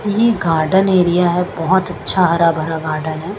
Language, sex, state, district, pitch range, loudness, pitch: Hindi, female, Chandigarh, Chandigarh, 160-190 Hz, -15 LUFS, 175 Hz